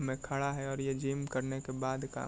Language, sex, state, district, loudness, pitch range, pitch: Hindi, male, Bihar, Begusarai, -36 LUFS, 130-135 Hz, 135 Hz